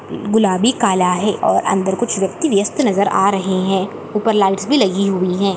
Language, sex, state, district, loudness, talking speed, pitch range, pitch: Hindi, female, Bihar, Purnia, -16 LUFS, 215 wpm, 190-215 Hz, 200 Hz